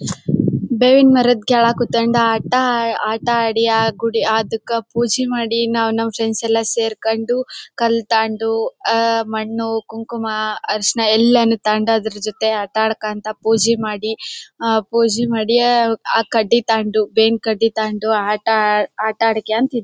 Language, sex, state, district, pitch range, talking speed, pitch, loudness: Kannada, female, Karnataka, Bellary, 220-235 Hz, 125 wpm, 225 Hz, -17 LUFS